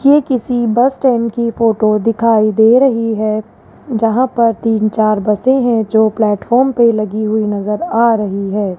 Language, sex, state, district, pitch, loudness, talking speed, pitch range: Hindi, male, Rajasthan, Jaipur, 225 Hz, -13 LUFS, 170 wpm, 215-235 Hz